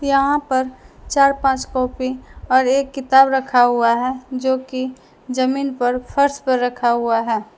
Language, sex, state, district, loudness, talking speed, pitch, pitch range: Hindi, female, Jharkhand, Deoghar, -18 LUFS, 160 wpm, 260 Hz, 250-270 Hz